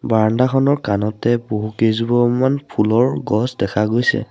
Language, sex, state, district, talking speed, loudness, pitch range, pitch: Assamese, male, Assam, Sonitpur, 110 wpm, -17 LUFS, 110-130 Hz, 115 Hz